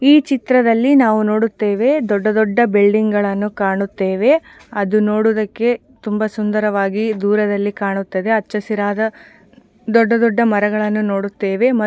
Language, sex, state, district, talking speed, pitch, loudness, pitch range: Kannada, female, Karnataka, Shimoga, 110 wpm, 215 Hz, -16 LUFS, 205-230 Hz